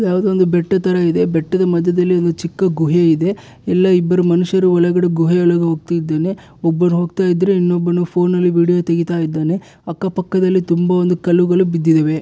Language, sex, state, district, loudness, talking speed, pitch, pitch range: Kannada, male, Karnataka, Bellary, -15 LUFS, 170 wpm, 175 Hz, 170-185 Hz